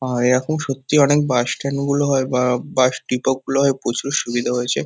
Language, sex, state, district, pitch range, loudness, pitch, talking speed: Bengali, male, West Bengal, Kolkata, 125-140 Hz, -19 LUFS, 130 Hz, 195 wpm